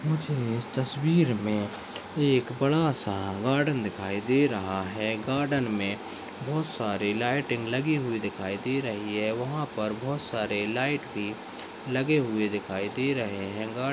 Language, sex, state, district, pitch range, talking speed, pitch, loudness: Hindi, male, Chhattisgarh, Balrampur, 105-140 Hz, 155 wpm, 120 Hz, -28 LUFS